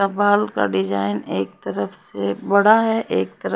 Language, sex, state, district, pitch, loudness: Hindi, female, Haryana, Jhajjar, 100 Hz, -20 LUFS